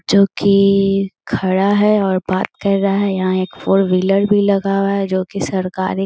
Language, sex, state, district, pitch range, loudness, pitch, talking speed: Hindi, female, Bihar, Gaya, 185-200 Hz, -16 LUFS, 195 Hz, 210 wpm